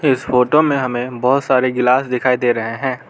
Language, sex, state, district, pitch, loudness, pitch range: Hindi, male, Arunachal Pradesh, Lower Dibang Valley, 125 Hz, -16 LUFS, 125-130 Hz